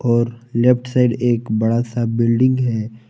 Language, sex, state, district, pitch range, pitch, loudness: Hindi, male, Jharkhand, Palamu, 115-125 Hz, 120 Hz, -18 LUFS